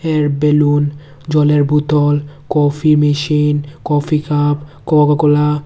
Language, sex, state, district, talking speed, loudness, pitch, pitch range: Bengali, male, Tripura, West Tripura, 105 wpm, -14 LUFS, 150 Hz, 145-150 Hz